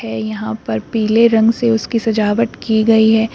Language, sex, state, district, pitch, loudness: Hindi, female, Uttar Pradesh, Shamli, 220 Hz, -15 LUFS